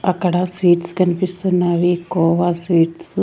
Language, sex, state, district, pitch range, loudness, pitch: Telugu, female, Andhra Pradesh, Sri Satya Sai, 170-180 Hz, -17 LUFS, 175 Hz